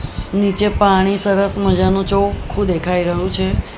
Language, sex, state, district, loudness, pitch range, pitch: Gujarati, female, Gujarat, Gandhinagar, -16 LUFS, 180-200 Hz, 195 Hz